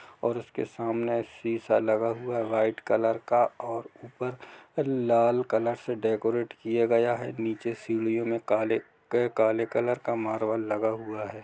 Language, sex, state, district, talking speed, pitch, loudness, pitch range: Hindi, male, Jharkhand, Jamtara, 155 wpm, 115 Hz, -28 LUFS, 110-120 Hz